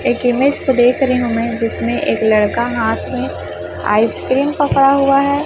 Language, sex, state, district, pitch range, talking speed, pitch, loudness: Hindi, male, Chhattisgarh, Raipur, 215-270 Hz, 175 wpm, 240 Hz, -15 LUFS